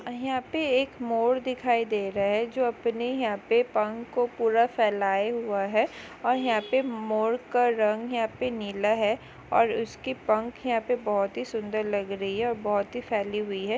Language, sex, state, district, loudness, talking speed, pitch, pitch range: Hindi, female, Goa, North and South Goa, -27 LUFS, 195 wpm, 230 Hz, 210-245 Hz